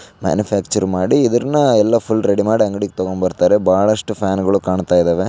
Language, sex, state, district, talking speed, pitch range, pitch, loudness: Kannada, male, Karnataka, Raichur, 170 wpm, 95-110 Hz, 100 Hz, -16 LUFS